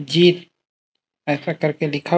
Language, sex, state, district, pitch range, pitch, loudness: Hindi, male, Chhattisgarh, Bastar, 145-175 Hz, 165 Hz, -20 LUFS